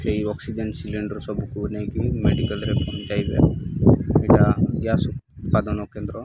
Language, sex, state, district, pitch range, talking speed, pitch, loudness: Odia, male, Odisha, Malkangiri, 105-110 Hz, 115 wpm, 105 Hz, -22 LUFS